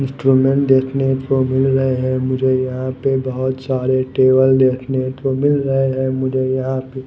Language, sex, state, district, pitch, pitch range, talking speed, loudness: Hindi, male, Odisha, Nuapada, 130 Hz, 130-135 Hz, 170 wpm, -17 LUFS